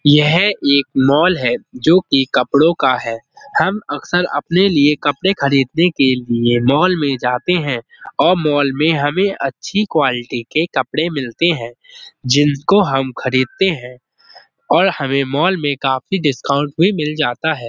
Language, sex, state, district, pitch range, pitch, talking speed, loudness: Hindi, male, Uttar Pradesh, Budaun, 130-170 Hz, 145 Hz, 150 wpm, -15 LUFS